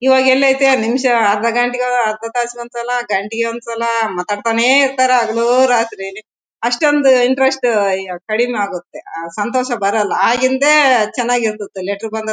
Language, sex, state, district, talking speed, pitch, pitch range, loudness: Kannada, female, Karnataka, Bellary, 130 wpm, 235 Hz, 215-255 Hz, -15 LUFS